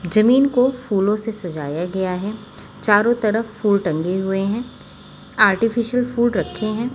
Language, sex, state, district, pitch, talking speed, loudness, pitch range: Hindi, female, Chhattisgarh, Raipur, 215 Hz, 145 wpm, -19 LUFS, 190-235 Hz